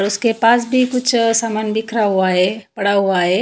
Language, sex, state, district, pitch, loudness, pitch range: Hindi, female, Haryana, Charkhi Dadri, 215 Hz, -16 LUFS, 195-230 Hz